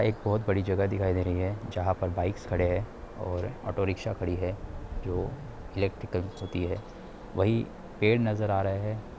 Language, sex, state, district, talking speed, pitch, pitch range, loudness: Hindi, male, Bihar, Darbhanga, 175 wpm, 100 Hz, 90-110 Hz, -30 LUFS